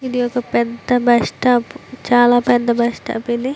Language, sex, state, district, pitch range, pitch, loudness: Telugu, female, Andhra Pradesh, Visakhapatnam, 235-250 Hz, 245 Hz, -16 LUFS